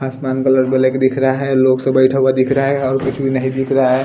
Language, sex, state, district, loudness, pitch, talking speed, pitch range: Hindi, male, Bihar, Patna, -15 LUFS, 130 Hz, 325 wpm, 130-135 Hz